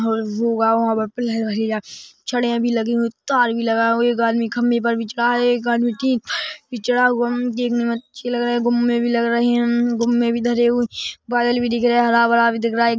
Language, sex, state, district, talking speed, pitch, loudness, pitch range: Hindi, female, Chhattisgarh, Rajnandgaon, 210 wpm, 235 Hz, -19 LUFS, 230-240 Hz